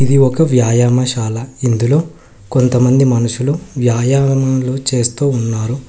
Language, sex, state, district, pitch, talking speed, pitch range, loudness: Telugu, male, Telangana, Hyderabad, 125 Hz, 90 wpm, 120-135 Hz, -14 LUFS